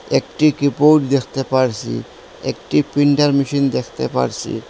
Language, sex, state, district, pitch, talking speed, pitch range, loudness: Bengali, male, Assam, Hailakandi, 140 Hz, 115 wpm, 130-145 Hz, -17 LUFS